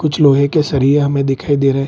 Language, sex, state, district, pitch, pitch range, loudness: Hindi, male, Bihar, Kishanganj, 140 Hz, 135-145 Hz, -14 LUFS